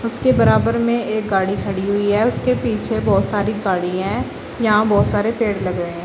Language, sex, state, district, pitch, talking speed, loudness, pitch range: Hindi, female, Uttar Pradesh, Shamli, 205 Hz, 200 wpm, -18 LUFS, 190-225 Hz